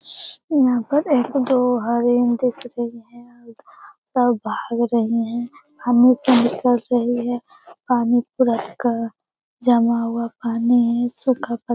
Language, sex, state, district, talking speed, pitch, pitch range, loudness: Hindi, female, Bihar, Jamui, 145 wpm, 245 Hz, 235-255 Hz, -20 LUFS